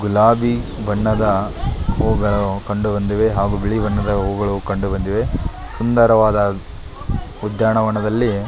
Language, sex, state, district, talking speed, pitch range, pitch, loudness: Kannada, male, Karnataka, Belgaum, 85 wpm, 100-110 Hz, 105 Hz, -18 LUFS